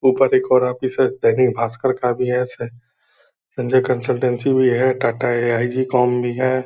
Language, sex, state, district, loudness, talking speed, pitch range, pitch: Hindi, male, Bihar, Purnia, -18 LUFS, 180 wpm, 120-130 Hz, 125 Hz